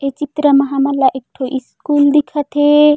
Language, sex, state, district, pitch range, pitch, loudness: Chhattisgarhi, female, Chhattisgarh, Raigarh, 275-295 Hz, 285 Hz, -14 LUFS